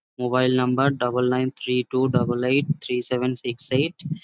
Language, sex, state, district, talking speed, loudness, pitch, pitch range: Bengali, male, West Bengal, Jhargram, 185 wpm, -23 LUFS, 125 Hz, 125-135 Hz